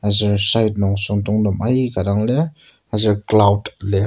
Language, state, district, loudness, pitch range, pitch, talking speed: Ao, Nagaland, Kohima, -17 LUFS, 100-110 Hz, 105 Hz, 145 wpm